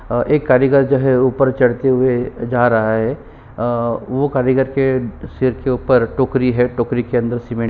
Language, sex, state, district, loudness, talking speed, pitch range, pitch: Hindi, male, Chhattisgarh, Kabirdham, -16 LUFS, 200 wpm, 120-130 Hz, 125 Hz